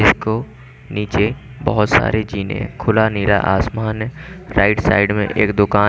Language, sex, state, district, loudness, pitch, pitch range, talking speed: Hindi, male, Chandigarh, Chandigarh, -17 LUFS, 110 Hz, 105-115 Hz, 130 wpm